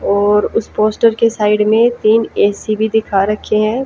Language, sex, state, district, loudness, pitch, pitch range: Hindi, female, Haryana, Jhajjar, -14 LUFS, 215 Hz, 210-225 Hz